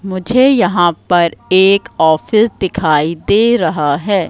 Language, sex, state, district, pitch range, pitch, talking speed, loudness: Hindi, female, Madhya Pradesh, Katni, 165-215 Hz, 190 Hz, 125 wpm, -12 LUFS